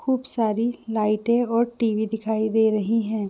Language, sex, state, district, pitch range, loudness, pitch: Hindi, female, Chhattisgarh, Raigarh, 215-235 Hz, -23 LUFS, 225 Hz